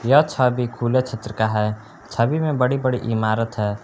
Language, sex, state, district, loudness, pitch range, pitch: Hindi, male, Jharkhand, Palamu, -21 LUFS, 110-130 Hz, 120 Hz